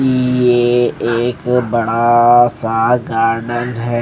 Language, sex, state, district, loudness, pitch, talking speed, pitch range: Hindi, male, Maharashtra, Gondia, -14 LUFS, 120 Hz, 90 wpm, 115-125 Hz